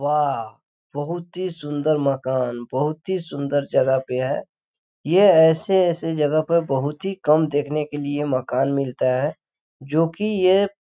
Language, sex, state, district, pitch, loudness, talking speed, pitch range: Hindi, male, Chhattisgarh, Korba, 150 Hz, -21 LUFS, 155 wpm, 140-170 Hz